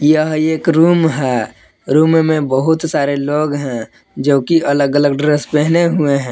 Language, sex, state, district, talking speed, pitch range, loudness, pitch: Hindi, male, Jharkhand, Palamu, 170 wpm, 140-160 Hz, -14 LUFS, 150 Hz